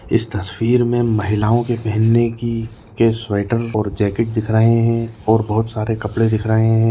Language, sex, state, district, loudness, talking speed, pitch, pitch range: Hindi, male, Bihar, Darbhanga, -18 LUFS, 185 wpm, 115 Hz, 110-115 Hz